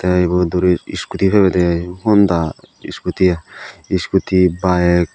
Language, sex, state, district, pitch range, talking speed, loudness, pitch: Chakma, male, Tripura, Dhalai, 85-95 Hz, 105 wpm, -16 LUFS, 90 Hz